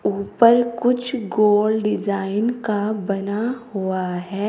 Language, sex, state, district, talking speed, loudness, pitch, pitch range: Hindi, female, Uttar Pradesh, Saharanpur, 105 wpm, -20 LUFS, 210 Hz, 200-230 Hz